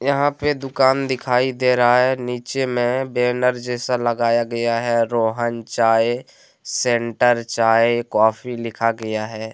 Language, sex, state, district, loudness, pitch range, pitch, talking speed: Hindi, male, Jharkhand, Deoghar, -19 LUFS, 115-125 Hz, 120 Hz, 140 wpm